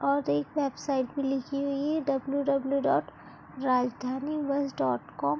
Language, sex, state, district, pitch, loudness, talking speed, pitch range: Hindi, female, Chhattisgarh, Bilaspur, 270 Hz, -29 LUFS, 165 wpm, 195-280 Hz